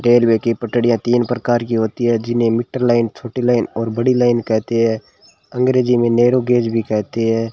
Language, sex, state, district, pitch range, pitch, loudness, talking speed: Hindi, male, Rajasthan, Bikaner, 115-120 Hz, 120 Hz, -17 LUFS, 200 wpm